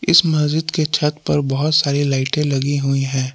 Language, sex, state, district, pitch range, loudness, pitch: Hindi, male, Jharkhand, Palamu, 135-155 Hz, -17 LUFS, 145 Hz